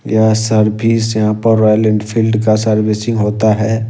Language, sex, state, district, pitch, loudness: Hindi, male, Jharkhand, Ranchi, 110 Hz, -13 LUFS